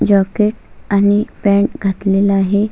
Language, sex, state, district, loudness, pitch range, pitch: Marathi, female, Maharashtra, Solapur, -15 LUFS, 195-205 Hz, 200 Hz